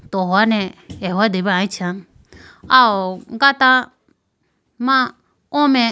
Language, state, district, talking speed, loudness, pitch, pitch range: Idu Mishmi, Arunachal Pradesh, Lower Dibang Valley, 80 wpm, -16 LUFS, 220 Hz, 190-255 Hz